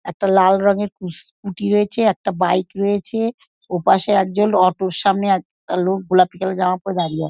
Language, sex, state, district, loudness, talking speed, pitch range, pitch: Bengali, female, West Bengal, Dakshin Dinajpur, -18 LUFS, 190 wpm, 185-205 Hz, 195 Hz